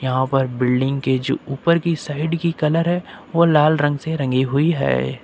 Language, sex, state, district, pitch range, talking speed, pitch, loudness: Hindi, male, Uttar Pradesh, Lucknow, 130-165 Hz, 205 wpm, 145 Hz, -19 LUFS